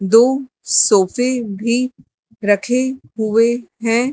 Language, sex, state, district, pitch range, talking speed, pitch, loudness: Hindi, male, Madhya Pradesh, Dhar, 215-250 Hz, 85 wpm, 235 Hz, -17 LUFS